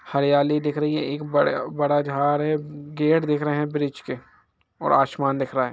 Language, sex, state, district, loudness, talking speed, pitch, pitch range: Hindi, male, Jharkhand, Jamtara, -23 LUFS, 210 wpm, 145 Hz, 140-150 Hz